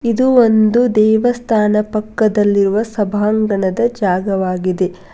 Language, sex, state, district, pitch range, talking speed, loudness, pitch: Kannada, female, Karnataka, Bangalore, 195-225 Hz, 70 wpm, -14 LUFS, 215 Hz